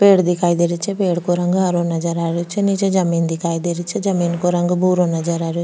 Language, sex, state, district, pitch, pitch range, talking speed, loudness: Rajasthani, female, Rajasthan, Nagaur, 175 Hz, 170-185 Hz, 285 wpm, -18 LUFS